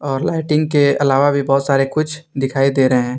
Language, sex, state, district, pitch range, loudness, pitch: Hindi, male, Jharkhand, Deoghar, 135-150 Hz, -16 LUFS, 140 Hz